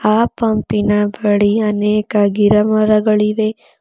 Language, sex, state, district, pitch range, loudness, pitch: Kannada, female, Karnataka, Bidar, 210-215 Hz, -15 LUFS, 210 Hz